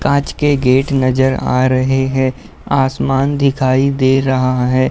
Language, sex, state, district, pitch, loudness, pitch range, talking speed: Hindi, male, Uttar Pradesh, Budaun, 130 Hz, -14 LUFS, 130-135 Hz, 145 wpm